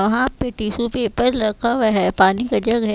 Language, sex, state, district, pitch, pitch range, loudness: Hindi, female, Chhattisgarh, Raipur, 230 Hz, 210-245 Hz, -18 LUFS